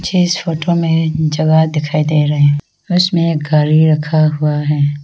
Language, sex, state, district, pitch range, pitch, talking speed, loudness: Hindi, female, Arunachal Pradesh, Lower Dibang Valley, 150-165 Hz, 155 Hz, 165 wpm, -14 LUFS